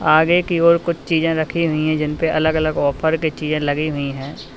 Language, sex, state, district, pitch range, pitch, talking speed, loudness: Hindi, male, Uttar Pradesh, Lalitpur, 150-165 Hz, 155 Hz, 225 wpm, -18 LUFS